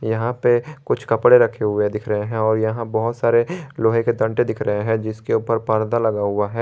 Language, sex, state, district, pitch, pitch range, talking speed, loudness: Hindi, male, Jharkhand, Garhwa, 110 Hz, 110-120 Hz, 225 wpm, -19 LUFS